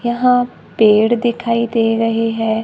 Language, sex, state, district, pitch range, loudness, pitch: Hindi, female, Maharashtra, Gondia, 225-240 Hz, -15 LUFS, 230 Hz